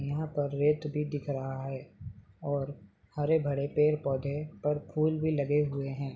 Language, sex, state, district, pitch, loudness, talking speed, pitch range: Hindi, male, Bihar, Madhepura, 145 Hz, -31 LUFS, 175 wpm, 135-150 Hz